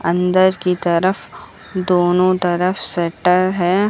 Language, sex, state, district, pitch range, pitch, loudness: Hindi, female, Uttar Pradesh, Lucknow, 175-185 Hz, 180 Hz, -16 LUFS